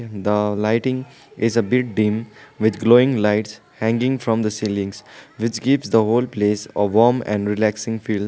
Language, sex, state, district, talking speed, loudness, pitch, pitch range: English, male, Sikkim, Gangtok, 165 wpm, -19 LUFS, 110 Hz, 105-120 Hz